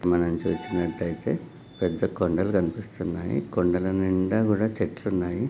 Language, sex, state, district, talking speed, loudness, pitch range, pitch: Telugu, male, Telangana, Nalgonda, 110 wpm, -26 LUFS, 85-105 Hz, 90 Hz